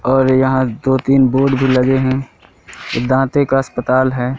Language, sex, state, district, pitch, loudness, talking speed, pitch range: Hindi, male, Madhya Pradesh, Katni, 130 Hz, -15 LUFS, 165 wpm, 130-135 Hz